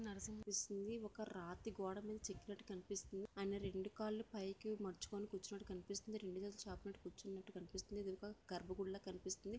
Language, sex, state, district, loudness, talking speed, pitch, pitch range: Telugu, female, Andhra Pradesh, Visakhapatnam, -49 LUFS, 125 wpm, 200 Hz, 190-210 Hz